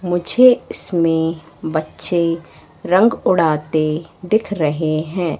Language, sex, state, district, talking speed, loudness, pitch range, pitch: Hindi, female, Madhya Pradesh, Katni, 90 wpm, -17 LUFS, 155-180 Hz, 165 Hz